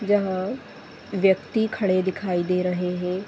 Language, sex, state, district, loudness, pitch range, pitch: Hindi, female, Uttar Pradesh, Deoria, -24 LUFS, 180-205 Hz, 190 Hz